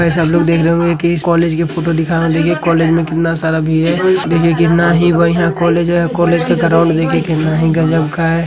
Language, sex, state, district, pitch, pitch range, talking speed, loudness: Hindi, male, Uttar Pradesh, Hamirpur, 165 Hz, 165-170 Hz, 240 wpm, -13 LUFS